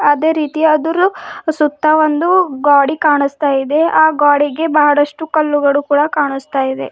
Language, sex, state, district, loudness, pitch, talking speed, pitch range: Kannada, female, Karnataka, Bidar, -13 LUFS, 300 Hz, 130 wpm, 290-315 Hz